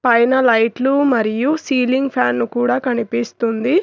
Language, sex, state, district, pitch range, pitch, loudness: Telugu, female, Telangana, Hyderabad, 230-265 Hz, 245 Hz, -16 LUFS